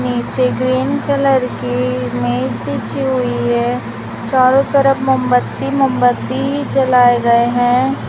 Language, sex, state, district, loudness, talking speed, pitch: Hindi, female, Chhattisgarh, Raipur, -15 LUFS, 120 wpm, 245 Hz